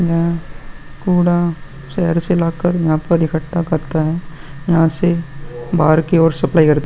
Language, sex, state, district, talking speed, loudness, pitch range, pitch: Hindi, male, Uttar Pradesh, Muzaffarnagar, 165 wpm, -16 LUFS, 155-170 Hz, 165 Hz